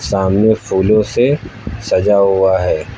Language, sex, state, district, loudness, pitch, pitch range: Hindi, male, Uttar Pradesh, Lucknow, -13 LUFS, 100 Hz, 95-110 Hz